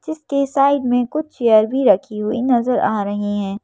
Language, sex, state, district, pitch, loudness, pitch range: Hindi, female, Madhya Pradesh, Bhopal, 245 Hz, -17 LUFS, 210-275 Hz